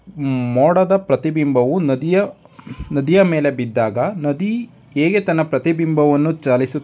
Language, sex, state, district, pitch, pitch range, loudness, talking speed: Kannada, male, Karnataka, Dharwad, 150 Hz, 135-175 Hz, -17 LUFS, 125 wpm